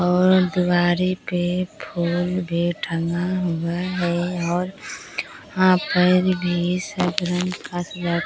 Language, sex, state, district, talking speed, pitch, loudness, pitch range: Hindi, female, Bihar, Katihar, 85 wpm, 180 Hz, -22 LUFS, 175-180 Hz